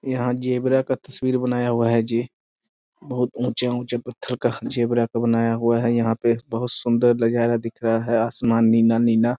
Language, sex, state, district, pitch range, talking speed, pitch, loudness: Hindi, male, Bihar, Muzaffarpur, 115-125 Hz, 180 wpm, 120 Hz, -21 LUFS